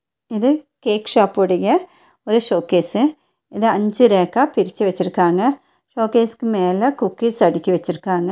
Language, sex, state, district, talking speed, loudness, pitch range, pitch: Tamil, female, Tamil Nadu, Nilgiris, 115 wpm, -18 LUFS, 185-265 Hz, 215 Hz